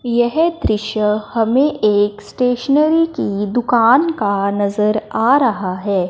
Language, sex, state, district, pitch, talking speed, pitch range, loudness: Hindi, male, Punjab, Fazilka, 225 Hz, 120 wpm, 205-270 Hz, -16 LUFS